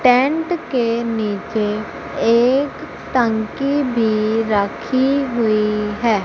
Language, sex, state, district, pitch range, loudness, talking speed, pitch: Hindi, female, Madhya Pradesh, Umaria, 215-260 Hz, -18 LUFS, 85 wpm, 230 Hz